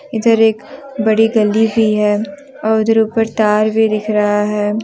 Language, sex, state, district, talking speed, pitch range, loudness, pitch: Hindi, female, Jharkhand, Deoghar, 175 wpm, 210-225 Hz, -14 LUFS, 220 Hz